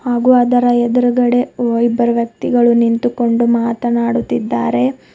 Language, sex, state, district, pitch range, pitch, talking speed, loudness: Kannada, female, Karnataka, Bidar, 235-245 Hz, 235 Hz, 80 wpm, -14 LUFS